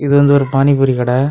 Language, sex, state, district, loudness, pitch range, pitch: Tamil, male, Tamil Nadu, Kanyakumari, -12 LUFS, 135-140 Hz, 135 Hz